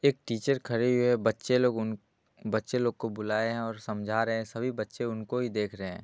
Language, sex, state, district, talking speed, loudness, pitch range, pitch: Maithili, male, Bihar, Supaul, 240 wpm, -30 LUFS, 110-125 Hz, 115 Hz